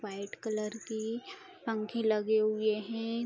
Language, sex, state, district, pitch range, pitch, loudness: Hindi, female, Bihar, Araria, 215-230 Hz, 220 Hz, -33 LUFS